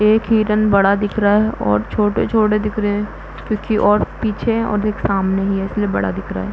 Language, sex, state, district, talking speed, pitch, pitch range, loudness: Hindi, female, Bihar, East Champaran, 240 wpm, 210 Hz, 200-215 Hz, -17 LUFS